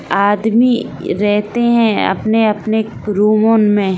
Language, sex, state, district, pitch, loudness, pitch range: Hindi, female, Bihar, Saran, 215 Hz, -14 LUFS, 205-225 Hz